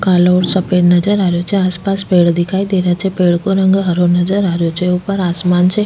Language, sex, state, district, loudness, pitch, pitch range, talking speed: Rajasthani, female, Rajasthan, Nagaur, -13 LUFS, 180 Hz, 175-195 Hz, 235 wpm